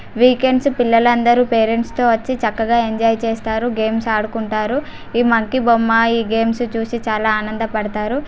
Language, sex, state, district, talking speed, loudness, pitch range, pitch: Telugu, female, Telangana, Karimnagar, 135 wpm, -17 LUFS, 220-240 Hz, 230 Hz